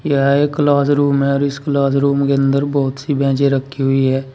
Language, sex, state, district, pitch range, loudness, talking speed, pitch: Hindi, male, Uttar Pradesh, Saharanpur, 135-140 Hz, -16 LUFS, 220 wpm, 140 Hz